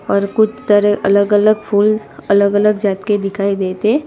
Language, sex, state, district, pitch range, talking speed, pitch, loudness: Hindi, female, Gujarat, Gandhinagar, 200-210 Hz, 175 wpm, 205 Hz, -14 LUFS